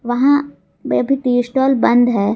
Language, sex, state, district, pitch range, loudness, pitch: Hindi, female, Jharkhand, Garhwa, 240-275 Hz, -15 LUFS, 250 Hz